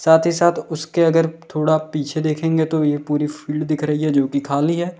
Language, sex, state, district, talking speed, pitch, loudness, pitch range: Hindi, male, Uttar Pradesh, Lalitpur, 215 wpm, 155 Hz, -19 LUFS, 150-165 Hz